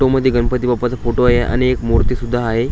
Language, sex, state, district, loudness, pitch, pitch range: Marathi, male, Maharashtra, Washim, -16 LUFS, 120 Hz, 120-125 Hz